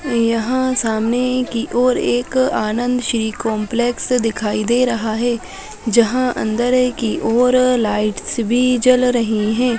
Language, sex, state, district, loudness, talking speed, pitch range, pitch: Hindi, female, Chhattisgarh, Sarguja, -17 LUFS, 130 wpm, 225-250 Hz, 240 Hz